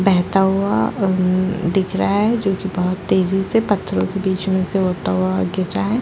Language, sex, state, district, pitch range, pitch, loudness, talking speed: Hindi, female, Chhattisgarh, Bastar, 180-195 Hz, 190 Hz, -18 LUFS, 210 wpm